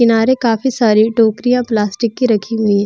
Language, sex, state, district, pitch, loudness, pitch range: Hindi, female, Bihar, Vaishali, 225 Hz, -14 LUFS, 215-240 Hz